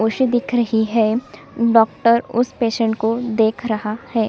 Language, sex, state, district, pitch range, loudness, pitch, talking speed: Hindi, female, Chhattisgarh, Sukma, 220-240 Hz, -18 LUFS, 230 Hz, 155 wpm